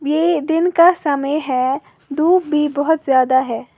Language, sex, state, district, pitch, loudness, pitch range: Hindi, female, Uttar Pradesh, Lalitpur, 300 Hz, -16 LUFS, 275-325 Hz